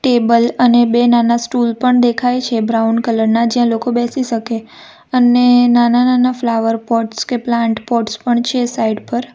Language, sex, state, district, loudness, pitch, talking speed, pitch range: Gujarati, female, Gujarat, Valsad, -14 LUFS, 240 Hz, 165 wpm, 230-245 Hz